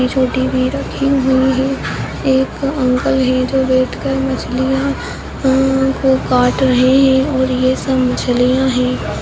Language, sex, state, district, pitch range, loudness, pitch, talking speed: Hindi, female, Bihar, Jahanabad, 255-265 Hz, -15 LUFS, 260 Hz, 50 wpm